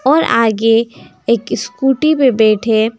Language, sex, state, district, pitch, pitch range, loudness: Hindi, female, West Bengal, Alipurduar, 230 Hz, 225-265 Hz, -13 LUFS